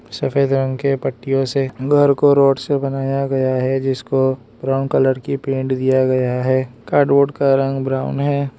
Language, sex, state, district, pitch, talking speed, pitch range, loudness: Hindi, male, Arunachal Pradesh, Lower Dibang Valley, 135 Hz, 175 wpm, 130-140 Hz, -17 LUFS